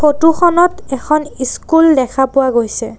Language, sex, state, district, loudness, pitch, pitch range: Assamese, female, Assam, Sonitpur, -13 LUFS, 300 Hz, 265-325 Hz